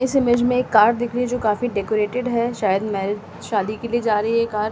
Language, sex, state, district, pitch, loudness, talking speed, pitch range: Hindi, female, Delhi, New Delhi, 230 Hz, -20 LUFS, 290 wpm, 210-240 Hz